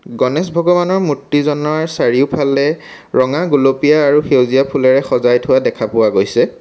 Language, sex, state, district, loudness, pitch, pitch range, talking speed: Assamese, male, Assam, Kamrup Metropolitan, -13 LUFS, 145 Hz, 135-155 Hz, 125 wpm